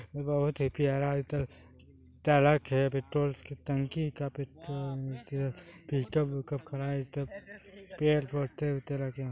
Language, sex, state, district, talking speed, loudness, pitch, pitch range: Hindi, male, Chhattisgarh, Sarguja, 130 wpm, -32 LUFS, 140 Hz, 135-150 Hz